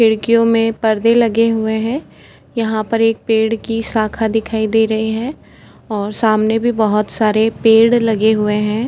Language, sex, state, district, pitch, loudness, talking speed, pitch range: Hindi, female, Uttar Pradesh, Etah, 225 Hz, -15 LUFS, 170 wpm, 220-230 Hz